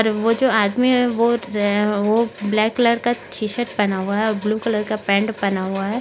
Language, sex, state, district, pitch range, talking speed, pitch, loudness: Hindi, female, Maharashtra, Solapur, 205-235 Hz, 240 wpm, 215 Hz, -19 LUFS